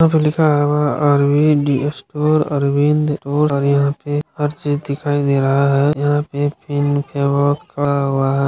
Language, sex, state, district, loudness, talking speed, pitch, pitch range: Hindi, male, Uttar Pradesh, Gorakhpur, -17 LUFS, 155 wpm, 145 Hz, 140-150 Hz